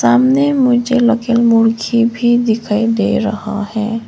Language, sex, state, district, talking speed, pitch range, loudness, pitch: Hindi, female, Arunachal Pradesh, Longding, 130 wpm, 210-235 Hz, -14 LUFS, 225 Hz